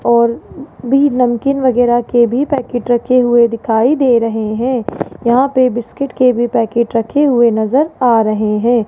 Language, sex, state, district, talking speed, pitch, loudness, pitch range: Hindi, female, Rajasthan, Jaipur, 170 wpm, 240 Hz, -13 LUFS, 235-255 Hz